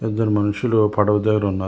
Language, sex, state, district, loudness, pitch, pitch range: Telugu, male, Telangana, Hyderabad, -19 LUFS, 105 Hz, 105-110 Hz